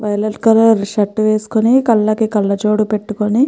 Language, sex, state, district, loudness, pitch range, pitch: Telugu, female, Andhra Pradesh, Krishna, -14 LUFS, 210-225 Hz, 215 Hz